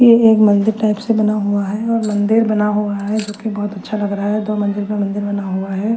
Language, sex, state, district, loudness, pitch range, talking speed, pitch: Hindi, female, Chandigarh, Chandigarh, -17 LUFS, 205-215 Hz, 250 wpm, 210 Hz